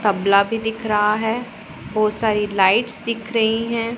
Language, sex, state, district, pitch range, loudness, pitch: Hindi, female, Punjab, Pathankot, 210-230 Hz, -19 LUFS, 220 Hz